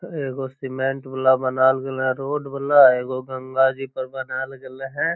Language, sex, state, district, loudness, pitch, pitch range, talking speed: Magahi, male, Bihar, Lakhisarai, -21 LUFS, 130 Hz, 130-135 Hz, 175 wpm